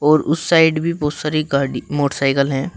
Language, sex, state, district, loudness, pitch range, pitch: Hindi, male, Uttar Pradesh, Shamli, -17 LUFS, 140-160 Hz, 150 Hz